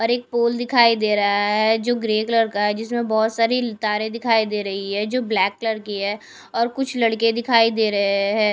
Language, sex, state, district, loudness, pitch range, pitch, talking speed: Hindi, female, Punjab, Kapurthala, -20 LUFS, 210-235 Hz, 220 Hz, 225 wpm